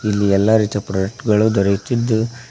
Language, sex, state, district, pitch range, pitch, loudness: Kannada, male, Karnataka, Koppal, 100-110 Hz, 105 Hz, -17 LUFS